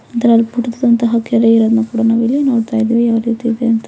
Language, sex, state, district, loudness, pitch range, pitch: Kannada, female, Karnataka, Belgaum, -13 LUFS, 225-235 Hz, 230 Hz